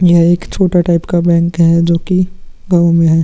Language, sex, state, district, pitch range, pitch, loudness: Hindi, male, Bihar, Vaishali, 170-180 Hz, 170 Hz, -12 LUFS